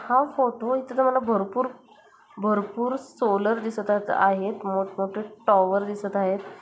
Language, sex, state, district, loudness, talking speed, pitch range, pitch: Marathi, female, Maharashtra, Chandrapur, -25 LUFS, 120 wpm, 200-250 Hz, 215 Hz